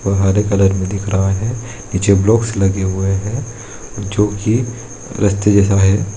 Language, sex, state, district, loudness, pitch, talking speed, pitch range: Hindi, male, Bihar, East Champaran, -16 LUFS, 100 Hz, 165 wpm, 95-110 Hz